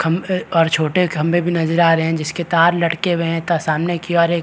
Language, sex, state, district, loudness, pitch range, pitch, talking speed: Hindi, male, Chhattisgarh, Bilaspur, -17 LUFS, 165-175 Hz, 170 Hz, 270 wpm